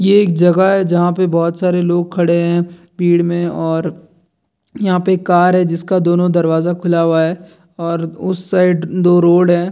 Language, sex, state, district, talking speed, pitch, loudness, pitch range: Hindi, male, Bihar, Jamui, 190 wpm, 175 Hz, -14 LUFS, 170-180 Hz